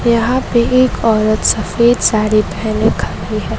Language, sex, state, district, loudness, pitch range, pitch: Hindi, female, Bihar, West Champaran, -14 LUFS, 215-240 Hz, 220 Hz